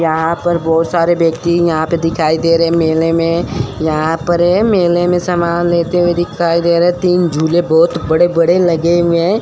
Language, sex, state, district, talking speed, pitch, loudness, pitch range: Hindi, male, Chandigarh, Chandigarh, 205 wpm, 170 Hz, -13 LUFS, 165-175 Hz